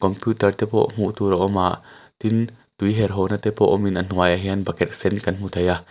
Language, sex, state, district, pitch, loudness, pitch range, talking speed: Mizo, male, Mizoram, Aizawl, 95 Hz, -21 LUFS, 90-105 Hz, 255 wpm